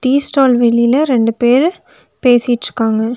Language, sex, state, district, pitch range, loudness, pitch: Tamil, female, Tamil Nadu, Nilgiris, 235-270 Hz, -13 LUFS, 245 Hz